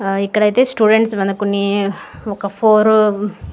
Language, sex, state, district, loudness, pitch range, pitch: Telugu, female, Andhra Pradesh, Guntur, -15 LUFS, 200-215 Hz, 205 Hz